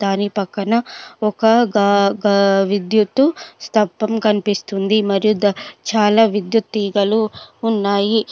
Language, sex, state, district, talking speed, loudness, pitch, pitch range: Telugu, female, Telangana, Adilabad, 100 wpm, -17 LUFS, 210 Hz, 200-220 Hz